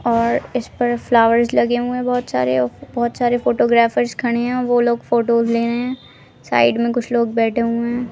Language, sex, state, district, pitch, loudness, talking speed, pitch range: Hindi, female, Maharashtra, Aurangabad, 235 Hz, -18 LUFS, 205 wpm, 230-240 Hz